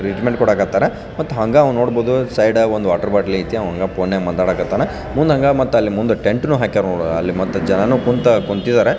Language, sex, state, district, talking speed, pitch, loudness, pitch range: Kannada, male, Karnataka, Belgaum, 165 wpm, 110 Hz, -16 LUFS, 95-125 Hz